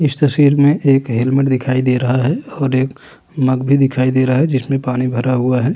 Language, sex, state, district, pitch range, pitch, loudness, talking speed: Hindi, male, Uttarakhand, Tehri Garhwal, 130-140 Hz, 130 Hz, -15 LUFS, 230 wpm